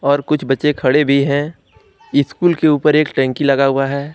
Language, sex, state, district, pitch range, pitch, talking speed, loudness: Hindi, male, Jharkhand, Deoghar, 135-150 Hz, 140 Hz, 200 wpm, -15 LUFS